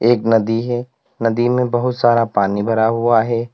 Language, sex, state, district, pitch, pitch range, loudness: Hindi, male, Uttar Pradesh, Lalitpur, 115 Hz, 115-120 Hz, -17 LUFS